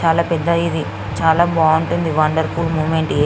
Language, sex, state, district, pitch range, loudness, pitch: Telugu, female, Andhra Pradesh, Guntur, 160-170 Hz, -17 LUFS, 160 Hz